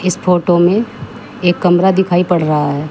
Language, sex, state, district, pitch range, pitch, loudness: Hindi, female, Uttar Pradesh, Shamli, 175-185 Hz, 175 Hz, -13 LUFS